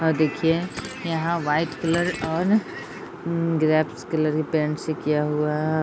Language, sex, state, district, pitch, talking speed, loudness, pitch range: Hindi, female, Bihar, Sitamarhi, 160 Hz, 155 wpm, -24 LUFS, 155-170 Hz